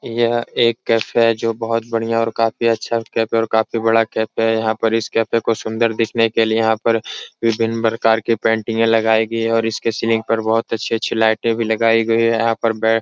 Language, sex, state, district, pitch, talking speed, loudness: Hindi, male, Uttar Pradesh, Etah, 115 Hz, 240 wpm, -17 LUFS